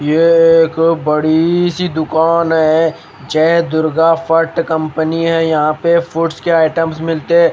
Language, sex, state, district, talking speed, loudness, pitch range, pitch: Hindi, male, Haryana, Rohtak, 135 wpm, -13 LUFS, 160-165 Hz, 165 Hz